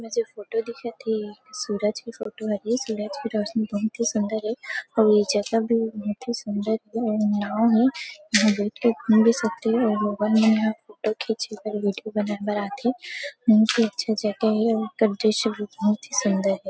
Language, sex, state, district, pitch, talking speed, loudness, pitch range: Chhattisgarhi, female, Chhattisgarh, Rajnandgaon, 220 Hz, 195 wpm, -24 LUFS, 210-230 Hz